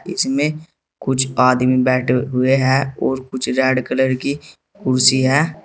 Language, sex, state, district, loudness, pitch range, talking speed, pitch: Hindi, male, Uttar Pradesh, Saharanpur, -17 LUFS, 130-140 Hz, 140 wpm, 130 Hz